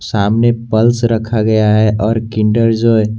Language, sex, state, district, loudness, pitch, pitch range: Hindi, male, Jharkhand, Garhwa, -13 LUFS, 110 Hz, 110-115 Hz